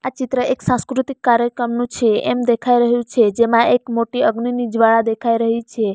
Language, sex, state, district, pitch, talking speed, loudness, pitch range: Gujarati, female, Gujarat, Valsad, 240 Hz, 170 wpm, -17 LUFS, 230-245 Hz